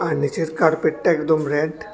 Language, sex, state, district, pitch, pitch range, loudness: Bengali, male, Tripura, West Tripura, 160 Hz, 155-165 Hz, -20 LUFS